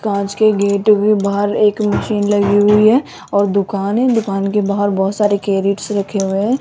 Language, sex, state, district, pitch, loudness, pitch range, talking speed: Hindi, female, Rajasthan, Jaipur, 205 Hz, -15 LUFS, 200-210 Hz, 200 wpm